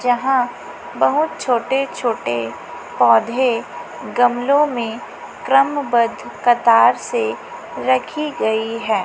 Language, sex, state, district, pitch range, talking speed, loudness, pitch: Hindi, female, Chhattisgarh, Raipur, 230-270 Hz, 85 wpm, -18 LUFS, 245 Hz